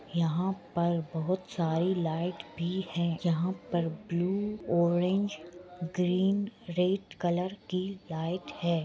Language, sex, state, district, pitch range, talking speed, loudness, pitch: Hindi, female, Uttar Pradesh, Budaun, 170-185 Hz, 115 wpm, -31 LUFS, 175 Hz